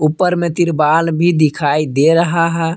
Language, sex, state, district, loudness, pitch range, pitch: Hindi, male, Jharkhand, Palamu, -14 LUFS, 155-170 Hz, 165 Hz